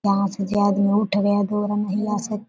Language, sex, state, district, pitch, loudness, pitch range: Hindi, female, Bihar, Darbhanga, 205 Hz, -21 LUFS, 200-210 Hz